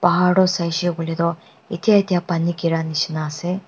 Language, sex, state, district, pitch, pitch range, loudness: Nagamese, female, Nagaland, Dimapur, 170 Hz, 165-180 Hz, -20 LUFS